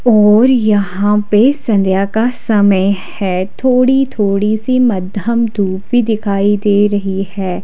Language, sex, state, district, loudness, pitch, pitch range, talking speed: Hindi, female, Himachal Pradesh, Shimla, -13 LUFS, 210 Hz, 195-235 Hz, 135 wpm